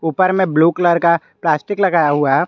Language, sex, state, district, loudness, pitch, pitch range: Hindi, male, Jharkhand, Garhwa, -15 LUFS, 170 Hz, 155-185 Hz